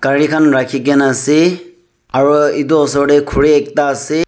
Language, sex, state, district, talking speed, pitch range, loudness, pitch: Nagamese, male, Nagaland, Dimapur, 170 wpm, 140-150 Hz, -12 LUFS, 145 Hz